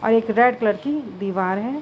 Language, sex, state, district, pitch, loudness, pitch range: Hindi, female, Uttar Pradesh, Budaun, 225 Hz, -21 LUFS, 200-250 Hz